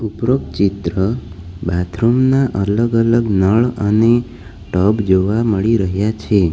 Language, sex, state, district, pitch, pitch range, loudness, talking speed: Gujarati, male, Gujarat, Valsad, 105 Hz, 95-115 Hz, -16 LUFS, 120 wpm